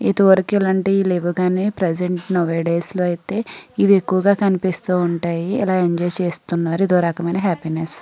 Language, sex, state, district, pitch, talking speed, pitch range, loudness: Telugu, female, Andhra Pradesh, Srikakulam, 180 Hz, 155 wpm, 170-195 Hz, -18 LUFS